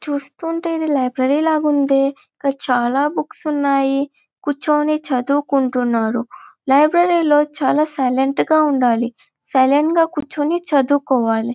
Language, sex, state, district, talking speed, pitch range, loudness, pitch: Telugu, female, Andhra Pradesh, Anantapur, 125 wpm, 265-305 Hz, -17 LUFS, 285 Hz